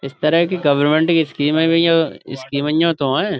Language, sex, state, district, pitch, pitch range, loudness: Urdu, male, Uttar Pradesh, Budaun, 155 Hz, 145-165 Hz, -16 LUFS